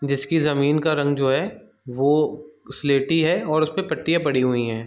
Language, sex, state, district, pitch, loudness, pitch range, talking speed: Hindi, male, Chhattisgarh, Bilaspur, 145 Hz, -21 LUFS, 135-155 Hz, 195 wpm